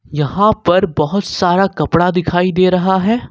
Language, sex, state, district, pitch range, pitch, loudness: Hindi, male, Jharkhand, Ranchi, 170-195 Hz, 180 Hz, -14 LUFS